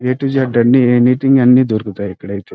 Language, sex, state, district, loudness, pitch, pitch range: Telugu, male, Andhra Pradesh, Krishna, -12 LUFS, 125 Hz, 110-130 Hz